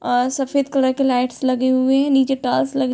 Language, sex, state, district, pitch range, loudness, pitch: Hindi, female, Uttar Pradesh, Deoria, 245-270 Hz, -18 LUFS, 260 Hz